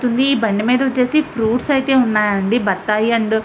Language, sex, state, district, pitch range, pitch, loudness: Telugu, female, Andhra Pradesh, Visakhapatnam, 215-260 Hz, 235 Hz, -16 LUFS